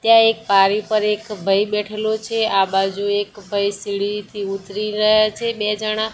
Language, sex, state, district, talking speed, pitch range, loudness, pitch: Gujarati, female, Gujarat, Gandhinagar, 175 wpm, 200-215 Hz, -19 LUFS, 210 Hz